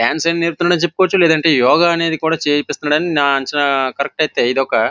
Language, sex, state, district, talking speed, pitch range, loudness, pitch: Telugu, male, Andhra Pradesh, Visakhapatnam, 210 wpm, 140-170 Hz, -15 LUFS, 155 Hz